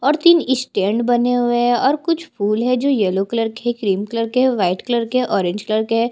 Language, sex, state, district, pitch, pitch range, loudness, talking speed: Hindi, female, Chhattisgarh, Bastar, 240 Hz, 215-255 Hz, -18 LUFS, 235 wpm